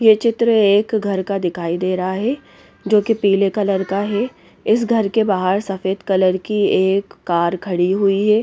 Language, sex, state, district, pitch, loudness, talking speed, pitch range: Hindi, female, Bihar, West Champaran, 200 Hz, -18 LUFS, 190 wpm, 190-215 Hz